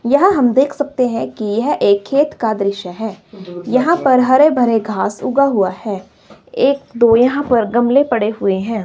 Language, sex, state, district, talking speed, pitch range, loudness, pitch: Hindi, female, Himachal Pradesh, Shimla, 190 wpm, 210-275 Hz, -15 LUFS, 235 Hz